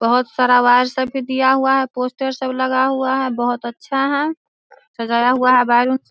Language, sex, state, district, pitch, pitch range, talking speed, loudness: Hindi, female, Bihar, Sitamarhi, 260 Hz, 245-265 Hz, 205 wpm, -17 LUFS